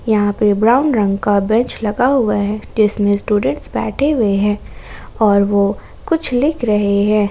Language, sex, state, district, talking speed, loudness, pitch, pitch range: Hindi, female, Jharkhand, Ranchi, 165 wpm, -15 LUFS, 210 Hz, 205-240 Hz